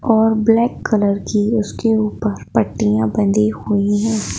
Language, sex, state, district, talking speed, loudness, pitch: Hindi, female, Madhya Pradesh, Bhopal, 135 wpm, -17 LUFS, 210 Hz